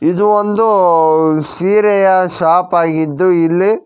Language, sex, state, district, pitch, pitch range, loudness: Kannada, male, Karnataka, Koppal, 180 Hz, 165-200 Hz, -12 LUFS